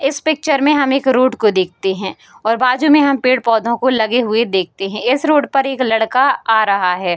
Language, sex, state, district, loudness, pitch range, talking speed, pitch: Hindi, female, Bihar, Darbhanga, -15 LUFS, 215-270 Hz, 225 wpm, 250 Hz